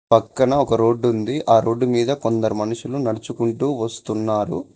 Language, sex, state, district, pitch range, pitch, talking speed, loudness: Telugu, male, Telangana, Mahabubabad, 110-130 Hz, 115 Hz, 140 wpm, -20 LUFS